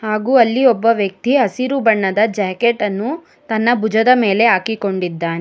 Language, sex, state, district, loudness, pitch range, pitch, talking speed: Kannada, female, Karnataka, Bangalore, -15 LUFS, 200-240 Hz, 225 Hz, 135 wpm